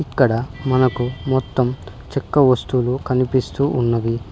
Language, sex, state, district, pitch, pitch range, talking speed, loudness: Telugu, male, Telangana, Mahabubabad, 125 Hz, 120-130 Hz, 95 wpm, -19 LUFS